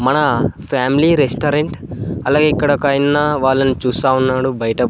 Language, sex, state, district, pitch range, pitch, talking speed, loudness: Telugu, male, Andhra Pradesh, Sri Satya Sai, 130-150 Hz, 135 Hz, 135 wpm, -15 LUFS